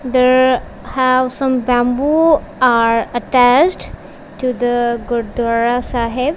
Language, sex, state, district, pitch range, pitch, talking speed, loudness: English, female, Punjab, Kapurthala, 240-255 Hz, 250 Hz, 95 wpm, -15 LUFS